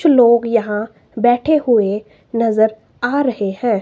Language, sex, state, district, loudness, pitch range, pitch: Hindi, female, Himachal Pradesh, Shimla, -16 LUFS, 215-245 Hz, 230 Hz